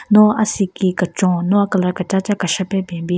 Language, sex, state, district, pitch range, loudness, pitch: Rengma, female, Nagaland, Kohima, 180-200 Hz, -17 LUFS, 190 Hz